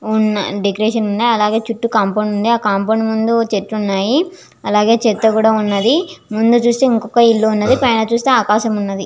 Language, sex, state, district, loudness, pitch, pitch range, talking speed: Telugu, female, Andhra Pradesh, Visakhapatnam, -15 LUFS, 220 Hz, 210-235 Hz, 170 wpm